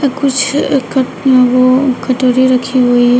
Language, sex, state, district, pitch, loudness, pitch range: Hindi, female, Uttar Pradesh, Shamli, 255 Hz, -11 LUFS, 250-275 Hz